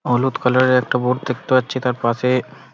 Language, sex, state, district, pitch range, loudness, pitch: Bengali, male, West Bengal, Paschim Medinipur, 125-130 Hz, -18 LUFS, 125 Hz